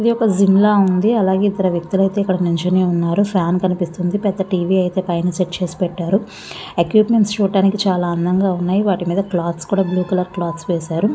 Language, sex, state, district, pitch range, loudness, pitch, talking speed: Telugu, female, Andhra Pradesh, Visakhapatnam, 175-200 Hz, -17 LUFS, 185 Hz, 170 wpm